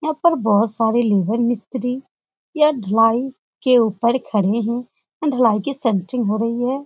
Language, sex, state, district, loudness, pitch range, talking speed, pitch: Hindi, female, Uttar Pradesh, Etah, -19 LUFS, 225-265 Hz, 150 wpm, 240 Hz